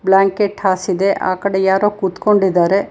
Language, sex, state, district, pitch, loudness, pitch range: Kannada, female, Karnataka, Bangalore, 195 Hz, -15 LUFS, 190-200 Hz